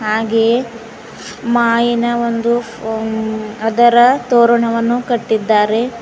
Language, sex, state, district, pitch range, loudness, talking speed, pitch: Kannada, female, Karnataka, Bidar, 220-240 Hz, -14 LUFS, 70 wpm, 230 Hz